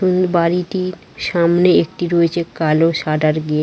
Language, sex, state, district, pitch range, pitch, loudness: Bengali, female, West Bengal, Dakshin Dinajpur, 160-180 Hz, 170 Hz, -16 LUFS